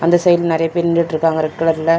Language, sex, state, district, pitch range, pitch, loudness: Tamil, male, Tamil Nadu, Chennai, 165-170 Hz, 165 Hz, -16 LUFS